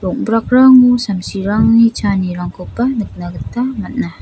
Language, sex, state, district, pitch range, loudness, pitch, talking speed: Garo, female, Meghalaya, South Garo Hills, 185-245 Hz, -13 LUFS, 220 Hz, 85 wpm